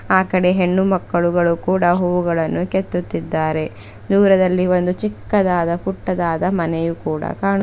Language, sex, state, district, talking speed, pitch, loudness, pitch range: Kannada, female, Karnataka, Bidar, 100 wpm, 180 Hz, -18 LUFS, 170-190 Hz